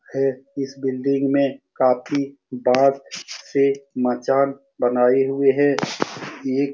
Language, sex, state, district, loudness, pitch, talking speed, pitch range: Hindi, male, Bihar, Saran, -21 LUFS, 135 Hz, 115 wpm, 130-140 Hz